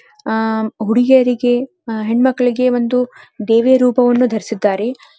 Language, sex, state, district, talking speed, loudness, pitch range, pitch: Kannada, female, Karnataka, Dharwad, 90 wpm, -15 LUFS, 225-250 Hz, 245 Hz